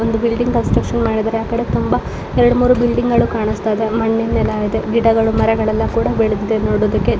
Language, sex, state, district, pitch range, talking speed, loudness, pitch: Kannada, female, Karnataka, Mysore, 220-235 Hz, 135 wpm, -16 LUFS, 225 Hz